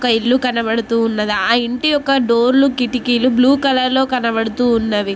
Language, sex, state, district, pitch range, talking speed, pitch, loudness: Telugu, female, Telangana, Mahabubabad, 230-255 Hz, 175 wpm, 245 Hz, -15 LUFS